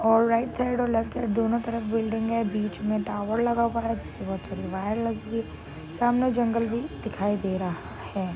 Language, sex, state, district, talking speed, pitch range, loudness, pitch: Marathi, female, Maharashtra, Sindhudurg, 210 wpm, 205-230 Hz, -27 LUFS, 225 Hz